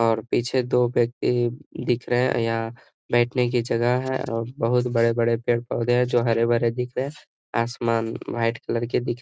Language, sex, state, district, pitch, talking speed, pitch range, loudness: Hindi, male, Bihar, Gaya, 120 Hz, 180 wpm, 115-125 Hz, -24 LUFS